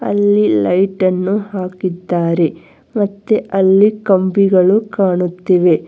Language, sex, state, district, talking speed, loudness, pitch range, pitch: Kannada, female, Karnataka, Bangalore, 80 wpm, -14 LUFS, 180-205 Hz, 190 Hz